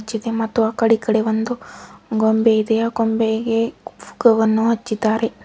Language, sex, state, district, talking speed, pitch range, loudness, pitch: Kannada, female, Karnataka, Bidar, 130 wpm, 220-230 Hz, -18 LUFS, 225 Hz